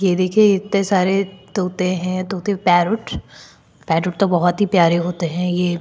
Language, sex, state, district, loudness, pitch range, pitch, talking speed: Hindi, female, Chhattisgarh, Korba, -18 LUFS, 175-195 Hz, 185 Hz, 155 wpm